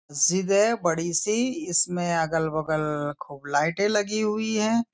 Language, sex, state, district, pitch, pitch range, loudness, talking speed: Hindi, male, Maharashtra, Nagpur, 175 Hz, 155-215 Hz, -24 LUFS, 135 wpm